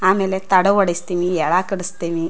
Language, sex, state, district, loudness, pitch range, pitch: Kannada, female, Karnataka, Chamarajanagar, -18 LUFS, 175-190 Hz, 185 Hz